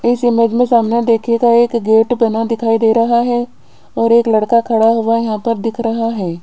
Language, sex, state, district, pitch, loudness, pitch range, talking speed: Hindi, female, Rajasthan, Jaipur, 230 Hz, -14 LUFS, 225-235 Hz, 205 wpm